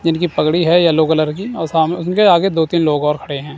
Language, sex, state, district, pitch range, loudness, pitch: Hindi, male, Punjab, Kapurthala, 155-175 Hz, -15 LUFS, 160 Hz